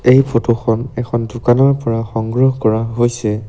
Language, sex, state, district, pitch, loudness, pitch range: Assamese, male, Assam, Sonitpur, 115 Hz, -15 LUFS, 115-125 Hz